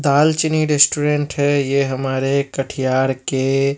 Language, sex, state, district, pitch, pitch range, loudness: Hindi, male, Bihar, Katihar, 140 Hz, 135-145 Hz, -17 LUFS